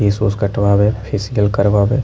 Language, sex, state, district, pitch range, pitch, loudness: Bhojpuri, male, Bihar, Muzaffarpur, 100-105 Hz, 105 Hz, -16 LUFS